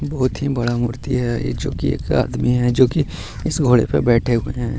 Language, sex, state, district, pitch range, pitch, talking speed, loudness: Hindi, male, Bihar, Gaya, 120-130 Hz, 125 Hz, 240 wpm, -19 LUFS